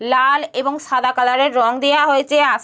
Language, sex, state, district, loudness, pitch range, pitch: Bengali, female, West Bengal, Jalpaiguri, -16 LUFS, 255-290 Hz, 270 Hz